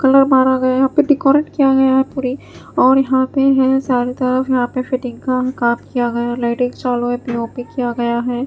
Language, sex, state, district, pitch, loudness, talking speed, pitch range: Hindi, female, Bihar, Katihar, 255 Hz, -16 LUFS, 220 wpm, 245-265 Hz